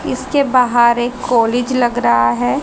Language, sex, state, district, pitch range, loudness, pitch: Hindi, female, Haryana, Rohtak, 230-250 Hz, -14 LUFS, 240 Hz